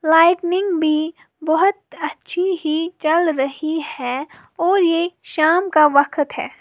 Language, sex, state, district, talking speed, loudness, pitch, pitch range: Hindi, female, Uttar Pradesh, Lalitpur, 125 wpm, -18 LUFS, 320 Hz, 310-350 Hz